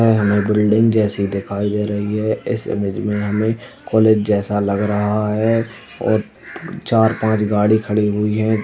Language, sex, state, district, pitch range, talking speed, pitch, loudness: Hindi, male, Uttar Pradesh, Hamirpur, 105-110 Hz, 160 wpm, 105 Hz, -18 LUFS